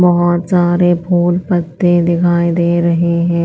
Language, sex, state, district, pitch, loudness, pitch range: Hindi, female, Chhattisgarh, Raipur, 175 Hz, -13 LUFS, 170-175 Hz